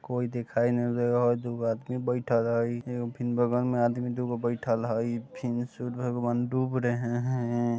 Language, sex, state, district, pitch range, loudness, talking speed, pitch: Bajjika, male, Bihar, Vaishali, 120-125 Hz, -29 LUFS, 200 wpm, 120 Hz